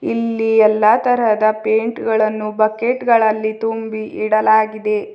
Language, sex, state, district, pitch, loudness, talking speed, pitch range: Kannada, female, Karnataka, Bidar, 220 Hz, -16 LUFS, 105 wpm, 215-225 Hz